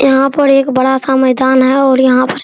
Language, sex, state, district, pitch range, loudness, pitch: Hindi, male, Bihar, Araria, 260-275 Hz, -10 LUFS, 265 Hz